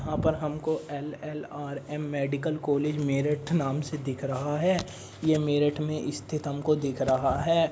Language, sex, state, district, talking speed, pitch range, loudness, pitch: Hindi, male, Uttar Pradesh, Muzaffarnagar, 150 wpm, 140-155 Hz, -29 LUFS, 150 Hz